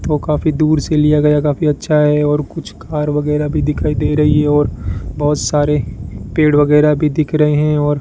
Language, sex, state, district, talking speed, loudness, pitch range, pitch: Hindi, male, Rajasthan, Bikaner, 215 wpm, -14 LUFS, 145-150 Hz, 150 Hz